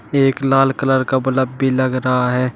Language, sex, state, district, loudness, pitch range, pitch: Hindi, male, Uttar Pradesh, Shamli, -16 LUFS, 130-135 Hz, 130 Hz